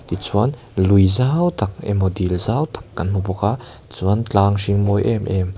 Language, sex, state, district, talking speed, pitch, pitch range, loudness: Mizo, male, Mizoram, Aizawl, 205 wpm, 100 Hz, 95-115 Hz, -19 LUFS